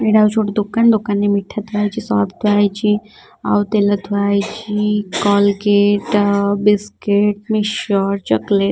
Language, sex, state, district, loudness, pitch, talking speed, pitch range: Odia, female, Odisha, Khordha, -16 LUFS, 205 Hz, 150 wpm, 200-210 Hz